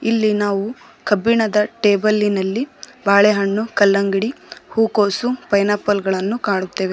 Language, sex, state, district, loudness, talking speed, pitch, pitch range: Kannada, female, Karnataka, Koppal, -18 LUFS, 105 wpm, 205 Hz, 200-225 Hz